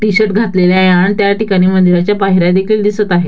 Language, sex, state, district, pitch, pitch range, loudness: Marathi, female, Maharashtra, Dhule, 195 Hz, 185-210 Hz, -11 LUFS